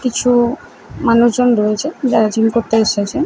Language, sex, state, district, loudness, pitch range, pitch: Bengali, female, West Bengal, Malda, -14 LUFS, 220-250 Hz, 235 Hz